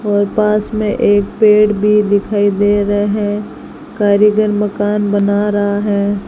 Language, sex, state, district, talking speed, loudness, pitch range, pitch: Hindi, female, Rajasthan, Bikaner, 135 wpm, -13 LUFS, 205-210 Hz, 205 Hz